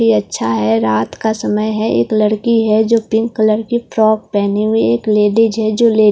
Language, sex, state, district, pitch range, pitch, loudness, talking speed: Hindi, female, Delhi, New Delhi, 205-225 Hz, 215 Hz, -14 LUFS, 205 wpm